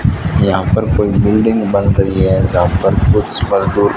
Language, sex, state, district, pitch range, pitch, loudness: Hindi, male, Rajasthan, Bikaner, 95-105 Hz, 100 Hz, -13 LUFS